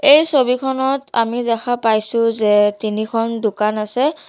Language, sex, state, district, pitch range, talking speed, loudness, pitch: Assamese, female, Assam, Sonitpur, 215-265 Hz, 125 wpm, -17 LUFS, 230 Hz